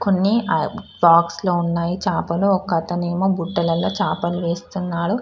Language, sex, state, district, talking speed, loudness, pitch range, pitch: Telugu, female, Telangana, Karimnagar, 115 wpm, -20 LUFS, 170-190 Hz, 175 Hz